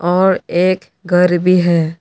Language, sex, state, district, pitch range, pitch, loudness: Hindi, male, Tripura, West Tripura, 175-185 Hz, 180 Hz, -14 LUFS